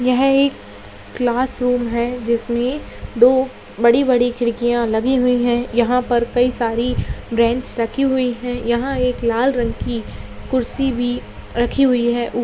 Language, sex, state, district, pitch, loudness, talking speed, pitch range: Hindi, female, Bihar, Kishanganj, 245 Hz, -18 LUFS, 150 wpm, 235-255 Hz